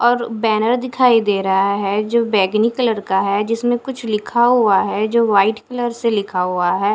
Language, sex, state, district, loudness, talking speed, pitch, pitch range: Hindi, female, Punjab, Fazilka, -17 LUFS, 200 wpm, 220 Hz, 200-240 Hz